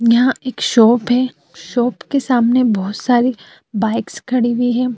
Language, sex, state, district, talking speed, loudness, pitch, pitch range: Hindi, female, Uttar Pradesh, Jyotiba Phule Nagar, 155 wpm, -16 LUFS, 240 Hz, 225-250 Hz